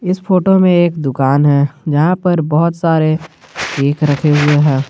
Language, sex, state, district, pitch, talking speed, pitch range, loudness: Hindi, male, Jharkhand, Garhwa, 155 Hz, 170 wpm, 145-175 Hz, -13 LUFS